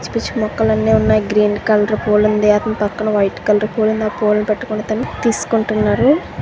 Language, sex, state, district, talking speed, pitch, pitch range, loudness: Telugu, female, Andhra Pradesh, Visakhapatnam, 180 wpm, 215 Hz, 210-220 Hz, -16 LUFS